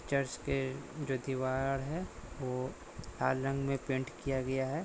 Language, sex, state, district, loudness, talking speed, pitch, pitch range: Hindi, male, Jharkhand, Sahebganj, -36 LUFS, 150 wpm, 135 Hz, 130-140 Hz